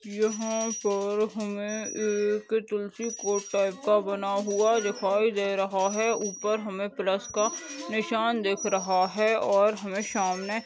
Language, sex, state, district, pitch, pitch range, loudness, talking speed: Hindi, female, Goa, North and South Goa, 210 Hz, 200-220 Hz, -27 LUFS, 145 wpm